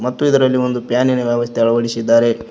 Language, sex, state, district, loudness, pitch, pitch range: Kannada, male, Karnataka, Koppal, -15 LUFS, 120 Hz, 115-125 Hz